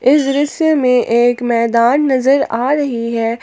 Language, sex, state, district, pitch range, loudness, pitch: Hindi, female, Jharkhand, Palamu, 235-280 Hz, -14 LUFS, 250 Hz